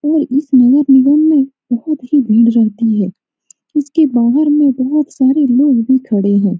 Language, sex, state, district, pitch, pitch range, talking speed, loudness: Hindi, female, Bihar, Saran, 265 Hz, 235-295 Hz, 180 wpm, -12 LUFS